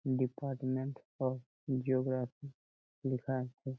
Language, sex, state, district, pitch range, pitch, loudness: Bengali, male, West Bengal, Malda, 130-135 Hz, 130 Hz, -37 LUFS